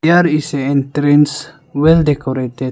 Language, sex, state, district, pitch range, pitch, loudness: English, male, Arunachal Pradesh, Lower Dibang Valley, 140-155 Hz, 150 Hz, -14 LUFS